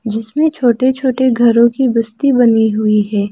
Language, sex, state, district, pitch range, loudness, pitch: Hindi, female, Arunachal Pradesh, Lower Dibang Valley, 220-260 Hz, -13 LUFS, 235 Hz